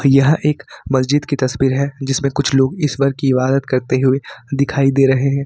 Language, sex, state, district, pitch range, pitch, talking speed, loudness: Hindi, male, Jharkhand, Ranchi, 130-140 Hz, 135 Hz, 210 wpm, -16 LUFS